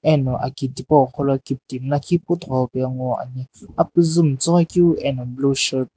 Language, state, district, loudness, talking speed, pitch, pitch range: Sumi, Nagaland, Dimapur, -20 LUFS, 180 wpm, 135 Hz, 130-160 Hz